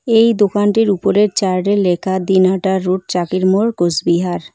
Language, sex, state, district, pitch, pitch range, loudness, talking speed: Bengali, female, West Bengal, Cooch Behar, 190 Hz, 180-205 Hz, -15 LUFS, 160 wpm